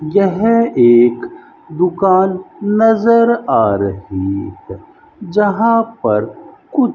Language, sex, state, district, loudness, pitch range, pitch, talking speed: Hindi, male, Rajasthan, Bikaner, -14 LUFS, 155-230 Hz, 205 Hz, 95 wpm